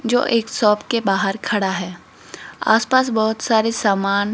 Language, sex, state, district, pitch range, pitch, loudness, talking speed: Hindi, female, Rajasthan, Jaipur, 200-230 Hz, 220 Hz, -18 LUFS, 165 wpm